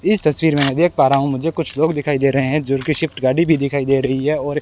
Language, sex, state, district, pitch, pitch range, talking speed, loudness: Hindi, male, Rajasthan, Bikaner, 145 Hz, 135-160 Hz, 325 wpm, -17 LUFS